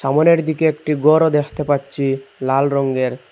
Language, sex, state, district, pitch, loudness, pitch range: Bengali, male, Assam, Hailakandi, 140 Hz, -17 LUFS, 135-155 Hz